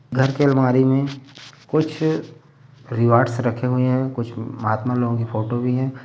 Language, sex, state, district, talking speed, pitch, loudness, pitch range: Hindi, male, Uttar Pradesh, Varanasi, 150 wpm, 130 Hz, -20 LUFS, 120-135 Hz